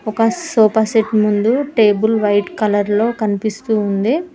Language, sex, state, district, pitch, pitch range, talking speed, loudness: Telugu, female, Telangana, Mahabubabad, 220 Hz, 210-225 Hz, 125 wpm, -16 LUFS